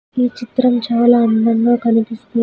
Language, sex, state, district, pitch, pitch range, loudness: Telugu, female, Andhra Pradesh, Sri Satya Sai, 235 Hz, 230-240 Hz, -15 LUFS